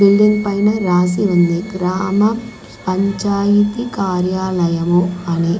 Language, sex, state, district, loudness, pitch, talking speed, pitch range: Telugu, female, Andhra Pradesh, Manyam, -16 LUFS, 190 Hz, 95 wpm, 180-205 Hz